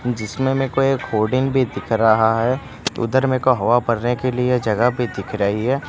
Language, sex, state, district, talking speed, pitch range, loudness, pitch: Hindi, male, Gujarat, Gandhinagar, 215 wpm, 115-130 Hz, -19 LUFS, 125 Hz